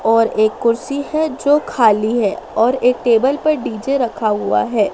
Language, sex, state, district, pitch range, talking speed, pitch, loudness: Hindi, female, Madhya Pradesh, Dhar, 215-275 Hz, 180 wpm, 235 Hz, -16 LUFS